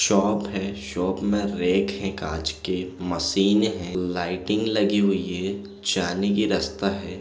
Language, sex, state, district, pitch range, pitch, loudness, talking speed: Hindi, male, Chhattisgarh, Balrampur, 90-100 Hz, 95 Hz, -24 LUFS, 150 wpm